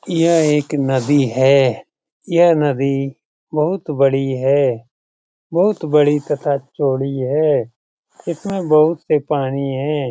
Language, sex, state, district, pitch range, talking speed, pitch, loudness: Hindi, male, Bihar, Jamui, 135-155 Hz, 115 wpm, 145 Hz, -17 LUFS